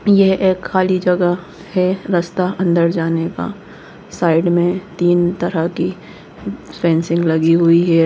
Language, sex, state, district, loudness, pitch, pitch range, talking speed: Hindi, female, Chhattisgarh, Bastar, -16 LUFS, 175 Hz, 170-185 Hz, 135 wpm